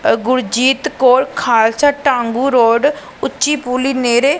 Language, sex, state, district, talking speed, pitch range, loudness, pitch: Punjabi, female, Punjab, Pathankot, 110 wpm, 240-280 Hz, -14 LUFS, 255 Hz